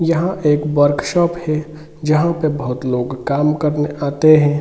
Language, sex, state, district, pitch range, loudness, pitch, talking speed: Hindi, male, Bihar, Sitamarhi, 145-155 Hz, -17 LUFS, 150 Hz, 170 wpm